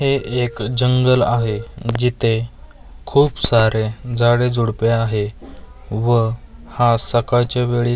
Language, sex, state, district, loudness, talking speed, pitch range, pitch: Marathi, male, Maharashtra, Mumbai Suburban, -18 LUFS, 105 wpm, 110-120 Hz, 115 Hz